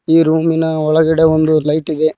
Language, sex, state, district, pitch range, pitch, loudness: Kannada, male, Karnataka, Koppal, 155-160 Hz, 160 Hz, -13 LUFS